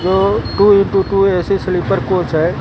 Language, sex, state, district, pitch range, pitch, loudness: Hindi, male, Uttar Pradesh, Lucknow, 180-195 Hz, 190 Hz, -14 LUFS